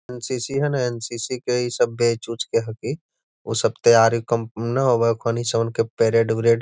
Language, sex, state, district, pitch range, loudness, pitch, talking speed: Magahi, male, Bihar, Gaya, 115-125 Hz, -21 LUFS, 115 Hz, 210 wpm